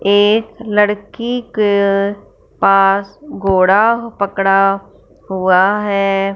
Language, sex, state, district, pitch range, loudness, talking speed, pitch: Hindi, female, Punjab, Fazilka, 195-210 Hz, -14 LUFS, 75 wpm, 200 Hz